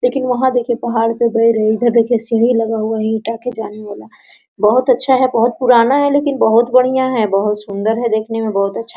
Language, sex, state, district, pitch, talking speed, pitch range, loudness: Hindi, female, Bihar, Araria, 230 Hz, 205 wpm, 220-250 Hz, -14 LUFS